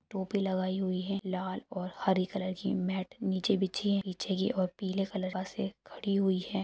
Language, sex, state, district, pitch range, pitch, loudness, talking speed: Hindi, female, Jharkhand, Sahebganj, 185-195 Hz, 190 Hz, -33 LUFS, 200 wpm